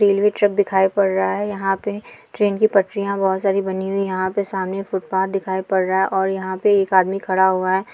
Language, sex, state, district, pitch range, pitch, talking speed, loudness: Hindi, female, Bihar, East Champaran, 190-200 Hz, 195 Hz, 235 wpm, -19 LUFS